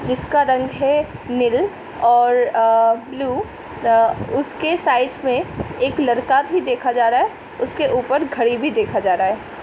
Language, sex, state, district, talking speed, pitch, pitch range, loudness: Hindi, female, Uttar Pradesh, Hamirpur, 155 wpm, 255 Hz, 240-290 Hz, -18 LUFS